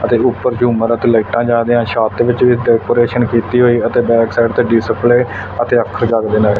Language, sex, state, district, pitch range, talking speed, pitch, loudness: Punjabi, male, Punjab, Fazilka, 115-120 Hz, 220 wpm, 120 Hz, -13 LUFS